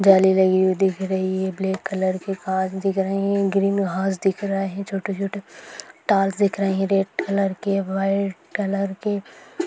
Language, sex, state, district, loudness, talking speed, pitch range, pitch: Hindi, male, Maharashtra, Nagpur, -22 LUFS, 185 wpm, 190-200 Hz, 195 Hz